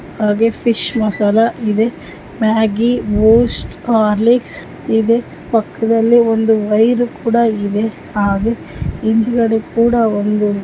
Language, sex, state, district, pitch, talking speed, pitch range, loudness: Kannada, female, Karnataka, Chamarajanagar, 225 Hz, 95 wpm, 215-235 Hz, -15 LUFS